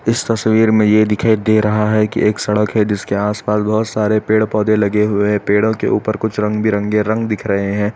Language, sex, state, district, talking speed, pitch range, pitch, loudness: Hindi, male, Uttar Pradesh, Etah, 235 wpm, 105-110 Hz, 105 Hz, -15 LUFS